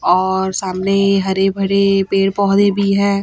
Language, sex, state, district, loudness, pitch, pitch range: Hindi, female, Chhattisgarh, Raipur, -15 LUFS, 195 Hz, 190-200 Hz